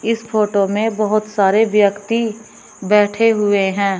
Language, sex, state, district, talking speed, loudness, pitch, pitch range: Hindi, female, Uttar Pradesh, Shamli, 135 wpm, -16 LUFS, 210 Hz, 200-220 Hz